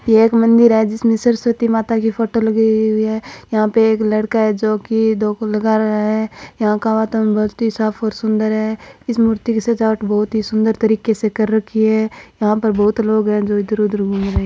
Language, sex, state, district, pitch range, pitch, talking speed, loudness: Marwari, female, Rajasthan, Churu, 215-225 Hz, 220 Hz, 225 wpm, -16 LUFS